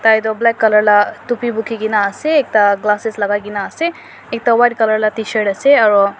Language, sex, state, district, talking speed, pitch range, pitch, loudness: Nagamese, female, Nagaland, Dimapur, 205 wpm, 205-230 Hz, 220 Hz, -14 LUFS